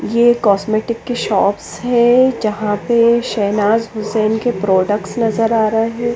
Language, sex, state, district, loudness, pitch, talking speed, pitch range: Hindi, female, Chandigarh, Chandigarh, -15 LUFS, 225 Hz, 135 wpm, 210-235 Hz